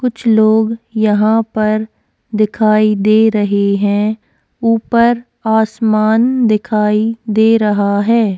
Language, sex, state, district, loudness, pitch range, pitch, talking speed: Hindi, female, Uttarakhand, Tehri Garhwal, -13 LUFS, 215-225 Hz, 220 Hz, 100 wpm